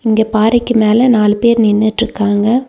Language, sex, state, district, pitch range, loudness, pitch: Tamil, female, Tamil Nadu, Nilgiris, 215-235 Hz, -12 LUFS, 220 Hz